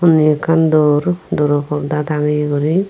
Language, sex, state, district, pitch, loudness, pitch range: Chakma, female, Tripura, Unakoti, 150 Hz, -15 LUFS, 150-160 Hz